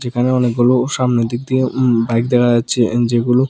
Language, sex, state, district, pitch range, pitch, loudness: Bengali, male, Tripura, West Tripura, 120-125 Hz, 120 Hz, -15 LUFS